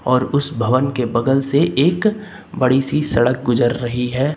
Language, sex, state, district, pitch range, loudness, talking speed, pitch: Hindi, male, Uttar Pradesh, Lucknow, 125-145 Hz, -17 LUFS, 180 wpm, 130 Hz